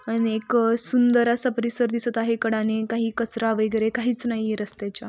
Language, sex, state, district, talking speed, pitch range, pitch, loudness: Marathi, female, Maharashtra, Sindhudurg, 165 wpm, 220-235 Hz, 230 Hz, -23 LUFS